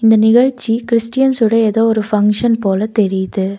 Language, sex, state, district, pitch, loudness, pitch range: Tamil, female, Tamil Nadu, Nilgiris, 225 Hz, -14 LUFS, 210-230 Hz